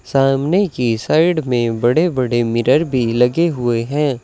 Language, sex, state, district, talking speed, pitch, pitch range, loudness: Hindi, male, Uttar Pradesh, Saharanpur, 155 wpm, 125 Hz, 120-155 Hz, -16 LUFS